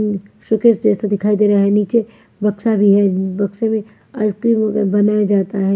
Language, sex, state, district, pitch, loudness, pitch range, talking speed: Hindi, female, Maharashtra, Mumbai Suburban, 210 Hz, -16 LUFS, 200-215 Hz, 165 wpm